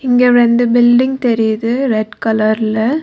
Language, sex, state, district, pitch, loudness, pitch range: Tamil, female, Tamil Nadu, Nilgiris, 240 Hz, -13 LUFS, 220-245 Hz